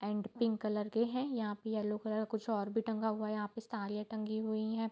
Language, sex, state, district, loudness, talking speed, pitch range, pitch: Hindi, female, Bihar, Bhagalpur, -37 LUFS, 255 wpm, 210-225 Hz, 220 Hz